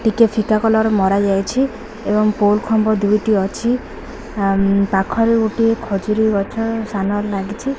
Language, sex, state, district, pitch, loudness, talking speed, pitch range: Odia, female, Odisha, Khordha, 215 Hz, -17 LUFS, 130 wpm, 200-225 Hz